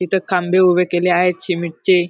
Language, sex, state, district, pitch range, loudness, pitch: Marathi, male, Maharashtra, Dhule, 175-185 Hz, -16 LUFS, 180 Hz